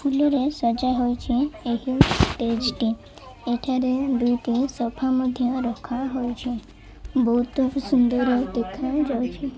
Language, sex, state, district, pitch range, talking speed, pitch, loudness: Odia, female, Odisha, Malkangiri, 240-265 Hz, 100 wpm, 250 Hz, -23 LUFS